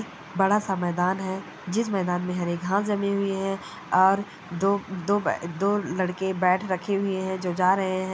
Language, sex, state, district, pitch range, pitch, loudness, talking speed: Hindi, female, Bihar, Gaya, 180-200 Hz, 190 Hz, -25 LUFS, 190 wpm